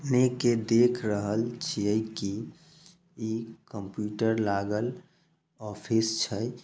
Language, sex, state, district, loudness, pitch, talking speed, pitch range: Maithili, male, Bihar, Samastipur, -28 LUFS, 115 Hz, 80 wpm, 105-125 Hz